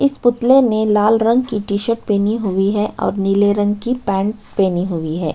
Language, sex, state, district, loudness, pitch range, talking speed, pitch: Hindi, female, Chhattisgarh, Sukma, -16 LUFS, 195-230 Hz, 200 wpm, 210 Hz